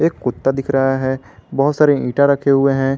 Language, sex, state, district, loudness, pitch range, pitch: Hindi, male, Jharkhand, Garhwa, -16 LUFS, 130-140 Hz, 135 Hz